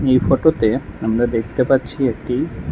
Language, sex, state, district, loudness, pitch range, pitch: Bengali, male, Tripura, West Tripura, -18 LUFS, 110-135 Hz, 125 Hz